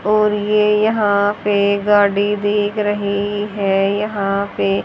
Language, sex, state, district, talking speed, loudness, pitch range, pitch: Hindi, female, Haryana, Jhajjar, 125 wpm, -16 LUFS, 200-210 Hz, 205 Hz